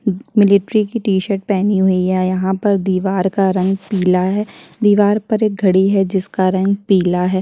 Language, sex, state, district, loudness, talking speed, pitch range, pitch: Hindi, female, Chhattisgarh, Kabirdham, -16 LUFS, 180 wpm, 185-205 Hz, 195 Hz